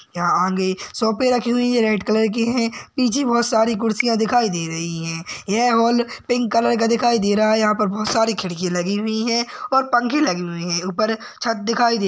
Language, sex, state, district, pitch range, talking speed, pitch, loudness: Hindi, male, Maharashtra, Chandrapur, 205-240 Hz, 215 wpm, 225 Hz, -19 LUFS